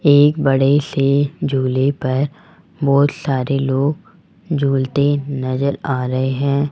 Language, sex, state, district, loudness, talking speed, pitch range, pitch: Hindi, male, Rajasthan, Jaipur, -17 LUFS, 115 wpm, 135-145 Hz, 140 Hz